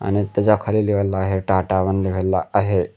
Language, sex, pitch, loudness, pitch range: Marathi, male, 95 Hz, -19 LUFS, 95-100 Hz